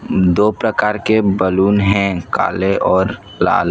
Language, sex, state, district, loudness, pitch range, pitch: Hindi, male, Gujarat, Valsad, -15 LUFS, 95-105 Hz, 100 Hz